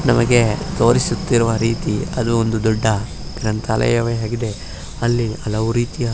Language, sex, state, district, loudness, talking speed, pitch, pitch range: Kannada, male, Karnataka, Mysore, -18 LUFS, 105 wpm, 115 Hz, 110-120 Hz